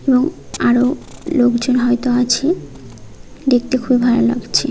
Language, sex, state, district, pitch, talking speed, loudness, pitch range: Bengali, female, West Bengal, Kolkata, 245 Hz, 115 wpm, -16 LUFS, 245-260 Hz